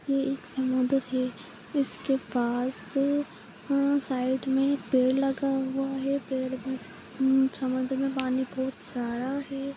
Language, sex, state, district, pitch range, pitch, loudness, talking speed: Hindi, female, Bihar, Jahanabad, 255-275 Hz, 265 Hz, -28 LUFS, 135 wpm